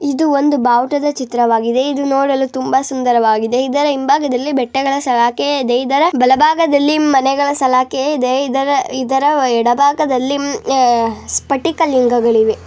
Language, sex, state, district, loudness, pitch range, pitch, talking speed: Kannada, female, Karnataka, Bellary, -14 LUFS, 250-285 Hz, 270 Hz, 135 wpm